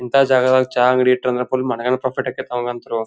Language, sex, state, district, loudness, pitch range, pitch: Kannada, male, Karnataka, Dharwad, -18 LUFS, 125-130 Hz, 125 Hz